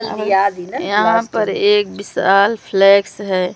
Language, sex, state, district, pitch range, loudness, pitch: Hindi, female, Madhya Pradesh, Umaria, 195-210 Hz, -15 LUFS, 200 Hz